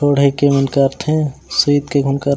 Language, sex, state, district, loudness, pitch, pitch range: Chhattisgarhi, male, Chhattisgarh, Raigarh, -15 LUFS, 140 Hz, 140-145 Hz